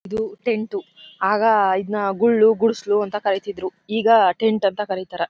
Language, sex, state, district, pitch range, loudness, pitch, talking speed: Kannada, female, Karnataka, Chamarajanagar, 195-225 Hz, -20 LUFS, 210 Hz, 135 wpm